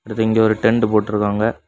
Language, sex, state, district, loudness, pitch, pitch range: Tamil, male, Tamil Nadu, Kanyakumari, -17 LUFS, 110 Hz, 105-110 Hz